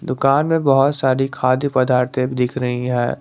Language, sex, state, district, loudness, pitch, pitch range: Hindi, male, Jharkhand, Garhwa, -18 LUFS, 130 Hz, 125-135 Hz